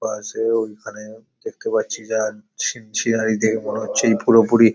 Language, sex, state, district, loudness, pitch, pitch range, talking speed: Bengali, male, West Bengal, Paschim Medinipur, -20 LUFS, 110 Hz, 110-120 Hz, 165 wpm